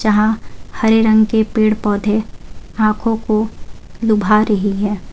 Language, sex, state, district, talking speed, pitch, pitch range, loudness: Hindi, female, Jharkhand, Garhwa, 130 wpm, 215 Hz, 210-220 Hz, -16 LUFS